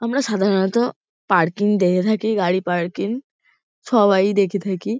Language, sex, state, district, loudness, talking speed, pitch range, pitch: Bengali, female, West Bengal, Kolkata, -19 LUFS, 120 wpm, 190-220 Hz, 200 Hz